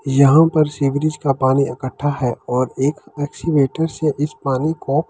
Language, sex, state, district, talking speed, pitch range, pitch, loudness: Hindi, male, Delhi, New Delhi, 190 wpm, 135-155 Hz, 140 Hz, -18 LUFS